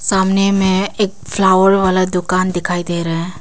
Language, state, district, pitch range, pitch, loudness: Hindi, Arunachal Pradesh, Papum Pare, 175-195 Hz, 185 Hz, -15 LUFS